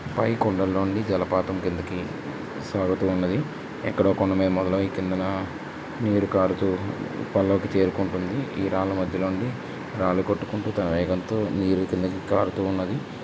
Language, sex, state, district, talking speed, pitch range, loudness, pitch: Telugu, male, Andhra Pradesh, Srikakulam, 70 wpm, 95-100 Hz, -25 LUFS, 95 Hz